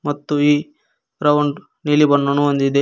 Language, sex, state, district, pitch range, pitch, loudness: Kannada, male, Karnataka, Koppal, 145-150 Hz, 145 Hz, -17 LUFS